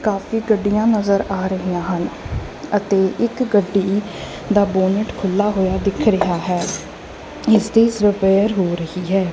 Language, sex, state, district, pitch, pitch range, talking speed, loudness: Punjabi, female, Punjab, Kapurthala, 200 Hz, 190-210 Hz, 150 wpm, -18 LUFS